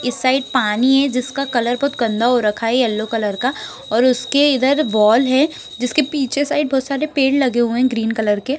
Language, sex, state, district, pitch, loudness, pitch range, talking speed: Hindi, female, Bihar, Begusarai, 255 Hz, -17 LUFS, 230-275 Hz, 215 wpm